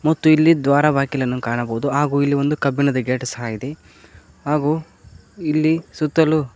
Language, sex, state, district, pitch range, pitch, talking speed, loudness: Kannada, male, Karnataka, Koppal, 130-155 Hz, 145 Hz, 135 wpm, -19 LUFS